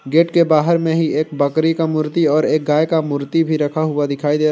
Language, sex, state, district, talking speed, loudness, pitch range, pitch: Hindi, male, Jharkhand, Ranchi, 250 wpm, -16 LUFS, 150-160 Hz, 155 Hz